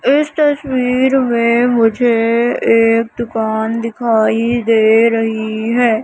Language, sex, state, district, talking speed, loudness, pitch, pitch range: Hindi, female, Madhya Pradesh, Katni, 100 wpm, -14 LUFS, 230 Hz, 225-245 Hz